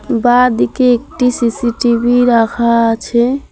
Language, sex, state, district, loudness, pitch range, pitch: Bengali, female, West Bengal, Alipurduar, -12 LUFS, 235-245 Hz, 240 Hz